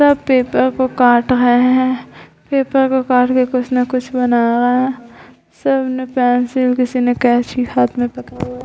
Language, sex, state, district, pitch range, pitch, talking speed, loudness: Hindi, female, Bihar, Vaishali, 245-255 Hz, 250 Hz, 185 wpm, -15 LUFS